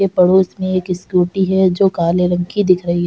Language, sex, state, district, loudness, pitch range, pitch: Hindi, female, Uttar Pradesh, Jalaun, -15 LUFS, 180-190 Hz, 185 Hz